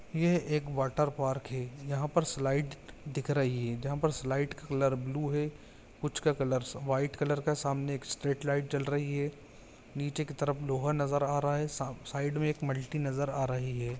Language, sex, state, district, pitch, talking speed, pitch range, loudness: Hindi, male, Chhattisgarh, Bilaspur, 140 Hz, 205 wpm, 135-145 Hz, -33 LUFS